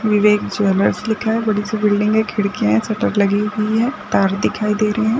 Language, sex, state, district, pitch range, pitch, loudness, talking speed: Hindi, female, Rajasthan, Nagaur, 205-215 Hz, 210 Hz, -17 LUFS, 220 wpm